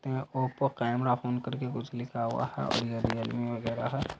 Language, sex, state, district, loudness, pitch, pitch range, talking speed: Hindi, male, Bihar, Saharsa, -32 LUFS, 120 Hz, 120-130 Hz, 200 wpm